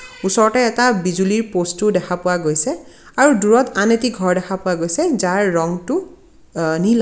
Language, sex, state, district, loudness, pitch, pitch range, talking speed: Assamese, female, Assam, Kamrup Metropolitan, -17 LUFS, 200 Hz, 180-245 Hz, 170 wpm